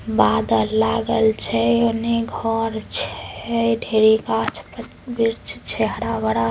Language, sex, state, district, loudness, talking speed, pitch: Maithili, female, Bihar, Samastipur, -19 LUFS, 100 wpm, 220 Hz